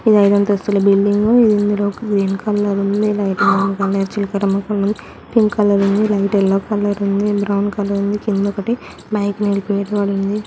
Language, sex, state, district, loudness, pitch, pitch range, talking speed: Telugu, female, Andhra Pradesh, Guntur, -16 LUFS, 205 Hz, 200-210 Hz, 120 wpm